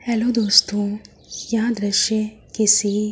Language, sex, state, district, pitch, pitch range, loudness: Hindi, female, Uttar Pradesh, Hamirpur, 215 Hz, 205-225 Hz, -19 LUFS